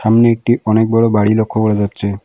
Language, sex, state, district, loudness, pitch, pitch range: Bengali, male, West Bengal, Alipurduar, -14 LUFS, 110 Hz, 105-115 Hz